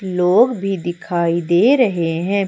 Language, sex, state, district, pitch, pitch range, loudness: Hindi, female, Madhya Pradesh, Umaria, 180 Hz, 170-195 Hz, -16 LUFS